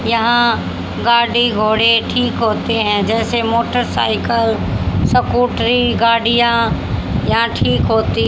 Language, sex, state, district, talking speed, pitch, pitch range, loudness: Hindi, female, Haryana, Charkhi Dadri, 95 wpm, 230 Hz, 215-235 Hz, -15 LUFS